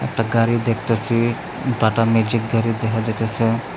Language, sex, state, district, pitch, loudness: Bengali, male, Tripura, West Tripura, 115 Hz, -20 LUFS